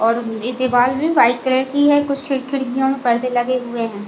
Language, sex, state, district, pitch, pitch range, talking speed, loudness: Hindi, female, Chhattisgarh, Bilaspur, 255 Hz, 240-270 Hz, 220 wpm, -17 LUFS